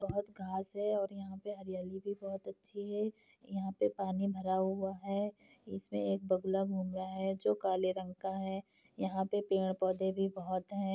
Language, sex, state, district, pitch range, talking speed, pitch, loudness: Hindi, female, Bihar, Jahanabad, 185-195 Hz, 185 wpm, 195 Hz, -37 LUFS